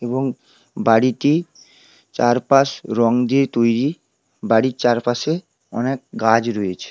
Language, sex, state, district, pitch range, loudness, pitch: Bengali, male, West Bengal, Paschim Medinipur, 115-135 Hz, -18 LUFS, 120 Hz